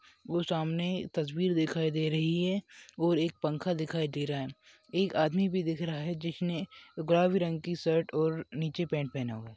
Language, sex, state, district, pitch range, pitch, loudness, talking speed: Hindi, male, Maharashtra, Chandrapur, 155-175 Hz, 165 Hz, -31 LUFS, 200 wpm